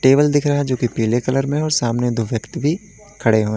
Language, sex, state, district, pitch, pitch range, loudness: Hindi, male, Uttar Pradesh, Lalitpur, 130 Hz, 115-145 Hz, -19 LUFS